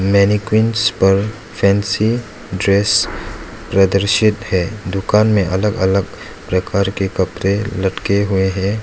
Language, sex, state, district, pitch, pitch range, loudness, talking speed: Hindi, male, Arunachal Pradesh, Lower Dibang Valley, 100 Hz, 95-105 Hz, -16 LUFS, 110 wpm